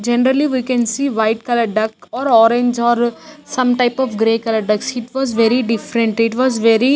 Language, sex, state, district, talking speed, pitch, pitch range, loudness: English, female, Chandigarh, Chandigarh, 205 wpm, 240 Hz, 225-255 Hz, -16 LUFS